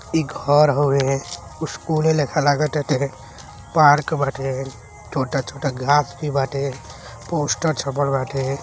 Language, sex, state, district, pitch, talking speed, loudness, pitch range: Hindi, male, Uttar Pradesh, Deoria, 140 Hz, 110 wpm, -20 LUFS, 135-150 Hz